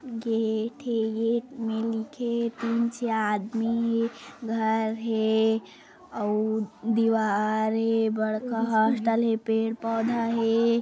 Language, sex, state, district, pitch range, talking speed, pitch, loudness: Hindi, female, Chhattisgarh, Kabirdham, 220-230 Hz, 105 wpm, 225 Hz, -26 LUFS